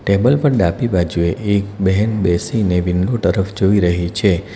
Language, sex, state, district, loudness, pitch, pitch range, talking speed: Gujarati, male, Gujarat, Valsad, -16 LUFS, 100 Hz, 90-105 Hz, 160 wpm